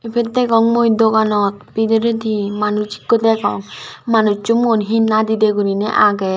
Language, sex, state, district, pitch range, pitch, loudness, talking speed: Chakma, female, Tripura, Dhalai, 210-230 Hz, 220 Hz, -16 LUFS, 130 wpm